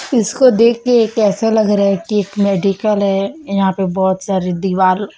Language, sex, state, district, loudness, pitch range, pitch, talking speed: Hindi, female, Chhattisgarh, Raipur, -14 LUFS, 190-225 Hz, 200 Hz, 185 wpm